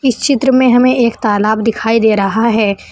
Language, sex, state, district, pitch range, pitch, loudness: Hindi, female, Uttar Pradesh, Saharanpur, 215-255 Hz, 225 Hz, -12 LUFS